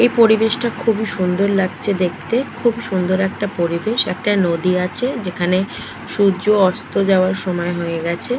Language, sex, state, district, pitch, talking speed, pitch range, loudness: Bengali, female, West Bengal, Purulia, 190 Hz, 145 wpm, 180-220 Hz, -18 LUFS